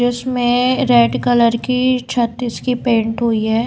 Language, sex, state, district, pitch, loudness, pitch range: Hindi, female, Bihar, Katihar, 245 Hz, -16 LUFS, 235-250 Hz